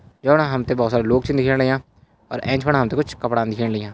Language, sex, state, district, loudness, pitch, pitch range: Hindi, male, Uttarakhand, Uttarkashi, -20 LUFS, 130 Hz, 115-135 Hz